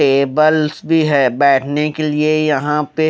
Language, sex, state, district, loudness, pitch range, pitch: Hindi, male, Haryana, Rohtak, -15 LUFS, 140-155 Hz, 150 Hz